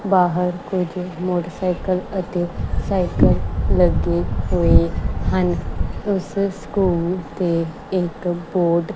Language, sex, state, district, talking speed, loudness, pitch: Punjabi, female, Punjab, Kapurthala, 95 wpm, -21 LUFS, 175 Hz